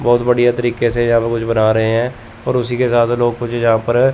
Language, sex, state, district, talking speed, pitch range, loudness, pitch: Hindi, male, Chandigarh, Chandigarh, 260 wpm, 115-120 Hz, -15 LUFS, 120 Hz